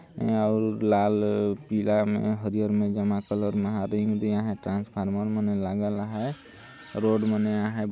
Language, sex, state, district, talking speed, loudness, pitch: Sadri, male, Chhattisgarh, Jashpur, 175 wpm, -26 LUFS, 105 Hz